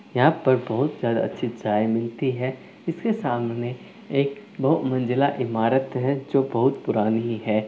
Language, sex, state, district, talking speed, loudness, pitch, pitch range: Hindi, male, Telangana, Karimnagar, 135 wpm, -24 LUFS, 130 Hz, 115-140 Hz